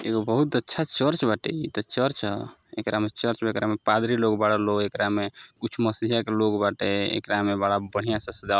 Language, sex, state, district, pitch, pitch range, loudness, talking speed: Maithili, male, Bihar, Samastipur, 110 Hz, 105-115 Hz, -25 LUFS, 230 wpm